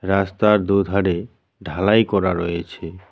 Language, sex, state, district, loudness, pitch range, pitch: Bengali, male, West Bengal, Cooch Behar, -19 LUFS, 90-100 Hz, 95 Hz